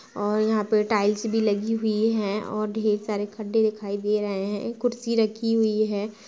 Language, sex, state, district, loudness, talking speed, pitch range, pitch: Hindi, female, Bihar, Gaya, -25 LUFS, 210 wpm, 210-220 Hz, 215 Hz